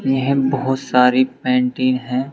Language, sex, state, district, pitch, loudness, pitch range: Hindi, male, Uttar Pradesh, Saharanpur, 130 Hz, -17 LUFS, 125-135 Hz